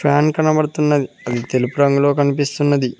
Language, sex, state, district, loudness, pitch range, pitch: Telugu, male, Telangana, Mahabubabad, -17 LUFS, 135-150 Hz, 145 Hz